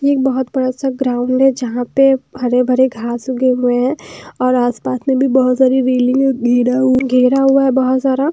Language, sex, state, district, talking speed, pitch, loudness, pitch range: Hindi, female, Bihar, Patna, 185 wpm, 260 Hz, -14 LUFS, 250-265 Hz